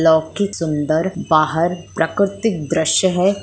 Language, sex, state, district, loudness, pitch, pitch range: Hindi, female, Bihar, Begusarai, -18 LUFS, 165 Hz, 160-195 Hz